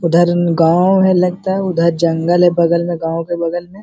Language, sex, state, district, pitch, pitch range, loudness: Hindi, male, Uttar Pradesh, Hamirpur, 175 Hz, 170-180 Hz, -14 LUFS